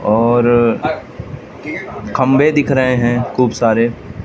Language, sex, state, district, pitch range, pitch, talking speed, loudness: Hindi, male, Madhya Pradesh, Katni, 115-130 Hz, 120 Hz, 100 wpm, -14 LUFS